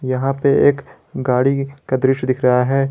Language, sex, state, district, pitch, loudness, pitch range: Hindi, male, Jharkhand, Garhwa, 135 Hz, -17 LUFS, 130-135 Hz